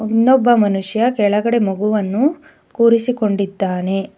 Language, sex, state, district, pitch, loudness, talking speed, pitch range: Kannada, female, Karnataka, Bangalore, 215 Hz, -16 LUFS, 70 wpm, 200-235 Hz